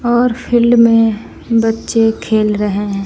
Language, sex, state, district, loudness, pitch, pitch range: Hindi, female, Bihar, West Champaran, -13 LUFS, 225 Hz, 215-235 Hz